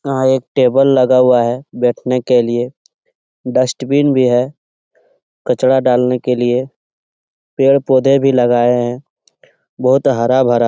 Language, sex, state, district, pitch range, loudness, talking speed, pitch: Hindi, male, Bihar, Lakhisarai, 125-135 Hz, -14 LUFS, 170 wpm, 130 Hz